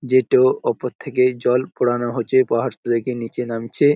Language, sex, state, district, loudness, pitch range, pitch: Bengali, male, West Bengal, Jalpaiguri, -20 LUFS, 120-145 Hz, 125 Hz